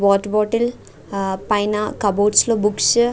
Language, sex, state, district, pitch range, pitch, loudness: Telugu, female, Andhra Pradesh, Guntur, 200-215 Hz, 210 Hz, -18 LUFS